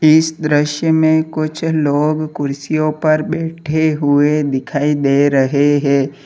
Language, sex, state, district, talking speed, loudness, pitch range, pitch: Hindi, male, Uttar Pradesh, Lalitpur, 125 wpm, -15 LUFS, 145-155 Hz, 150 Hz